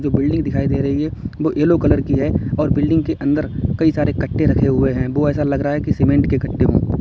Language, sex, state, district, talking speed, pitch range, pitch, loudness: Hindi, male, Uttar Pradesh, Lalitpur, 265 wpm, 130-150 Hz, 140 Hz, -17 LUFS